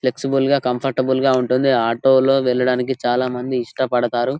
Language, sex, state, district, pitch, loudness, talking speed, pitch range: Telugu, male, Telangana, Karimnagar, 130 Hz, -18 LUFS, 150 wpm, 125-135 Hz